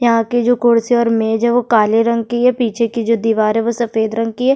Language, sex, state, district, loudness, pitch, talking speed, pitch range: Hindi, female, Chhattisgarh, Sukma, -15 LUFS, 230 Hz, 290 wpm, 225-240 Hz